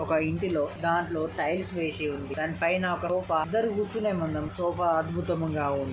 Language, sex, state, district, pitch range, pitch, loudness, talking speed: Telugu, male, Andhra Pradesh, Chittoor, 155-175 Hz, 165 Hz, -28 LUFS, 120 wpm